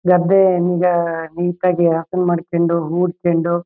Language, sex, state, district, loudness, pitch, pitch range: Kannada, male, Karnataka, Shimoga, -17 LUFS, 175 Hz, 170-180 Hz